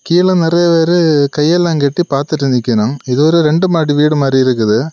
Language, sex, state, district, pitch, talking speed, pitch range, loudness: Tamil, male, Tamil Nadu, Kanyakumari, 150 Hz, 170 wpm, 135-170 Hz, -12 LUFS